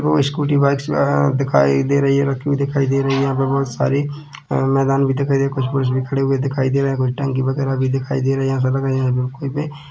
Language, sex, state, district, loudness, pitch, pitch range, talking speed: Hindi, male, Chhattisgarh, Bilaspur, -18 LUFS, 135 Hz, 135-140 Hz, 260 wpm